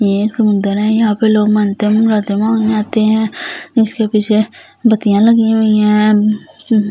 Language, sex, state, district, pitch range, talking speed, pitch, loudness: Hindi, female, Delhi, New Delhi, 210-220 Hz, 180 wpm, 215 Hz, -13 LUFS